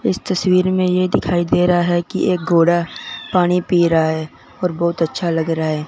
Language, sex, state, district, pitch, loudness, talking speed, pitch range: Hindi, male, Punjab, Fazilka, 175 Hz, -17 LUFS, 215 wpm, 165-180 Hz